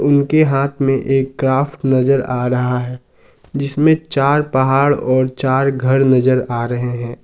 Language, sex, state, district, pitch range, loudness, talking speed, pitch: Hindi, male, Jharkhand, Ranchi, 125-140 Hz, -15 LUFS, 155 wpm, 135 Hz